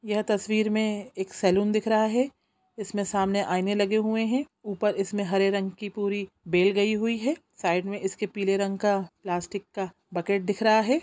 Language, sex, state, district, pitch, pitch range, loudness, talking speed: Hindi, female, Bihar, Jamui, 205 Hz, 195-215 Hz, -26 LUFS, 195 wpm